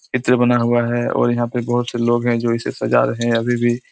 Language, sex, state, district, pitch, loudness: Hindi, male, Chhattisgarh, Raigarh, 120 Hz, -18 LUFS